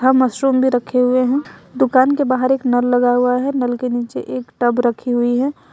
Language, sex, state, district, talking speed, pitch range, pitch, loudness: Hindi, female, Jharkhand, Ranchi, 220 wpm, 245-260 Hz, 250 Hz, -17 LUFS